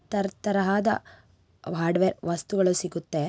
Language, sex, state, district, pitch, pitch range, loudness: Kannada, female, Karnataka, Bijapur, 180 Hz, 155-195 Hz, -26 LUFS